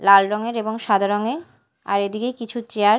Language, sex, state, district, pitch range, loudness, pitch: Bengali, female, Odisha, Malkangiri, 200-230 Hz, -21 LUFS, 215 Hz